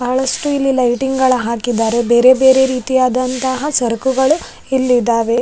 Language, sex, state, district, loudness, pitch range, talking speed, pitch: Kannada, female, Karnataka, Raichur, -14 LUFS, 240-265 Hz, 110 wpm, 255 Hz